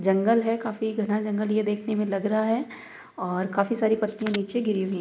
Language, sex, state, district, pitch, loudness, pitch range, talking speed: Hindi, female, Uttar Pradesh, Jalaun, 215 Hz, -26 LUFS, 200-220 Hz, 225 wpm